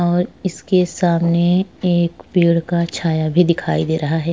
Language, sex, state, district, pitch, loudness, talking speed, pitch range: Hindi, male, Uttar Pradesh, Jyotiba Phule Nagar, 170 Hz, -17 LUFS, 165 wpm, 170-175 Hz